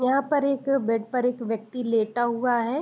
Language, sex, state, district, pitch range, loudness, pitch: Hindi, female, Bihar, Sitamarhi, 230-275 Hz, -25 LUFS, 245 Hz